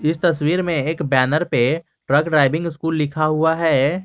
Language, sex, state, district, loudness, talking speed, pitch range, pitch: Hindi, male, Jharkhand, Garhwa, -19 LUFS, 180 wpm, 145-165 Hz, 155 Hz